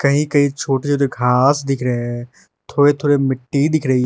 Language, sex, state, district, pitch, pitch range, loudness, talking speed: Hindi, male, Arunachal Pradesh, Lower Dibang Valley, 140 Hz, 125-145 Hz, -17 LUFS, 190 wpm